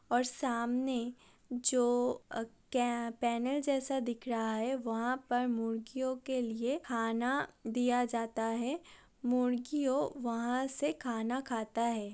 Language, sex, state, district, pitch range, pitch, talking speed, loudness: Hindi, female, Uttar Pradesh, Budaun, 230-260 Hz, 245 Hz, 125 wpm, -35 LUFS